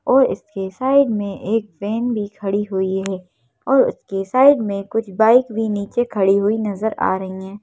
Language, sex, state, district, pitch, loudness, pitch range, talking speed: Hindi, female, Madhya Pradesh, Bhopal, 205 Hz, -19 LUFS, 195-225 Hz, 190 wpm